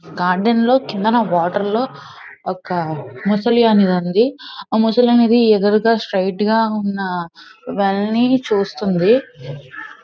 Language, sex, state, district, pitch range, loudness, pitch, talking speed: Telugu, female, Andhra Pradesh, Visakhapatnam, 185-230 Hz, -16 LUFS, 210 Hz, 100 wpm